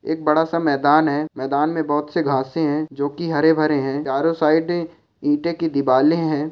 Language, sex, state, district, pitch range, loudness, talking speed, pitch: Hindi, male, Rajasthan, Churu, 145-160 Hz, -19 LUFS, 205 wpm, 155 Hz